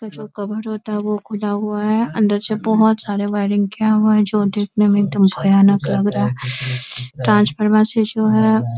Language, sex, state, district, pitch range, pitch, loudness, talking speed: Hindi, female, Bihar, Araria, 200-215 Hz, 210 Hz, -16 LUFS, 220 wpm